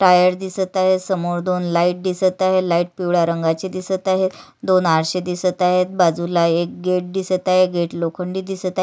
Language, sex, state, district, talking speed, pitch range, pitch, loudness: Marathi, female, Maharashtra, Sindhudurg, 175 wpm, 175-185 Hz, 180 Hz, -19 LUFS